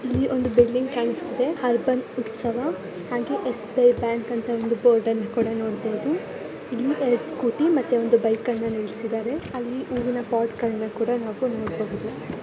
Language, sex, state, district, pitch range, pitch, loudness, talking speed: Kannada, female, Karnataka, Raichur, 225-250 Hz, 240 Hz, -24 LUFS, 155 wpm